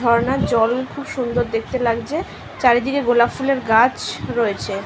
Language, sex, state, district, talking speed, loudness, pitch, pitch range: Bengali, female, West Bengal, North 24 Parganas, 135 wpm, -19 LUFS, 240 Hz, 230-260 Hz